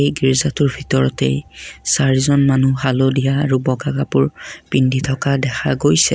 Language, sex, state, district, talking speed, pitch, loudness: Assamese, male, Assam, Kamrup Metropolitan, 125 wpm, 130 Hz, -17 LUFS